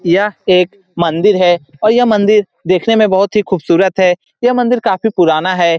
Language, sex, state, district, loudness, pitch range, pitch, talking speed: Hindi, male, Bihar, Saran, -12 LUFS, 175-215 Hz, 190 Hz, 185 wpm